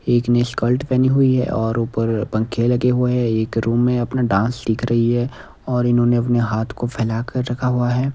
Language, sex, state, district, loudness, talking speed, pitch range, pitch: Hindi, male, Himachal Pradesh, Shimla, -19 LUFS, 220 wpm, 115-125 Hz, 120 Hz